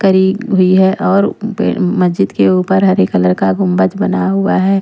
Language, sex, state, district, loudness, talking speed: Hindi, female, Bihar, Patna, -12 LUFS, 175 wpm